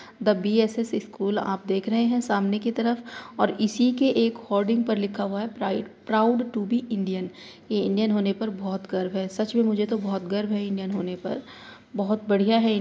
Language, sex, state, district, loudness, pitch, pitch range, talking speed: Hindi, female, Uttar Pradesh, Hamirpur, -25 LUFS, 210 Hz, 200-230 Hz, 205 wpm